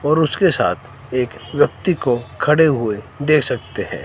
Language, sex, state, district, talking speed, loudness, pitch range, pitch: Hindi, male, Himachal Pradesh, Shimla, 165 wpm, -18 LUFS, 120-155 Hz, 140 Hz